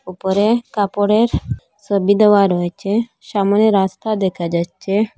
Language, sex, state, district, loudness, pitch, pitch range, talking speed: Bengali, female, Assam, Hailakandi, -17 LUFS, 200 Hz, 190-215 Hz, 105 wpm